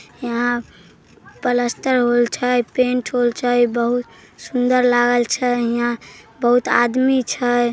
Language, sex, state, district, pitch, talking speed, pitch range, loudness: Maithili, female, Bihar, Samastipur, 245 Hz, 125 wpm, 240-250 Hz, -18 LUFS